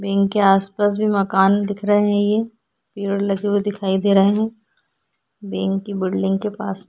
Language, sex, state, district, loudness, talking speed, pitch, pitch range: Hindi, female, Uttarakhand, Tehri Garhwal, -19 LUFS, 210 wpm, 200 Hz, 195-205 Hz